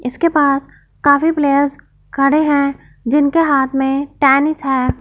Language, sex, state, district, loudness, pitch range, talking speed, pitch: Hindi, female, Punjab, Fazilka, -15 LUFS, 270-290 Hz, 130 wpm, 280 Hz